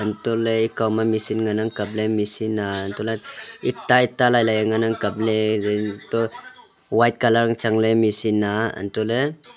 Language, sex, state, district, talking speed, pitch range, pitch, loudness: Wancho, male, Arunachal Pradesh, Longding, 190 wpm, 105-115 Hz, 110 Hz, -21 LUFS